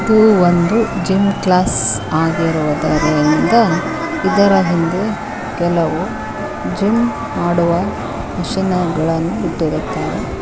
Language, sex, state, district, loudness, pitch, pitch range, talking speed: Kannada, female, Karnataka, Koppal, -16 LUFS, 175 Hz, 165-200 Hz, 70 wpm